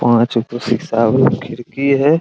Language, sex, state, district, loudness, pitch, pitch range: Hindi, male, Bihar, Araria, -16 LUFS, 120 Hz, 115-140 Hz